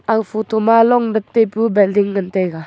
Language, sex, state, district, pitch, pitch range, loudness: Wancho, female, Arunachal Pradesh, Longding, 220 Hz, 200-225 Hz, -15 LUFS